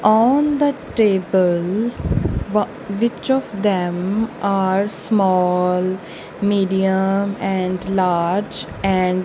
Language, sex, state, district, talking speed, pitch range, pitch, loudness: English, female, Punjab, Kapurthala, 85 wpm, 185-210 Hz, 195 Hz, -19 LUFS